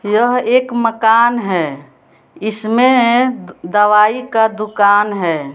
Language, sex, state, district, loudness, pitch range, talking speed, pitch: Hindi, female, Bihar, West Champaran, -13 LUFS, 205-240 Hz, 95 wpm, 220 Hz